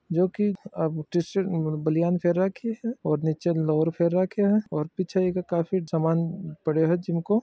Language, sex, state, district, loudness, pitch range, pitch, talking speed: Marwari, male, Rajasthan, Nagaur, -26 LUFS, 160-190 Hz, 175 Hz, 160 wpm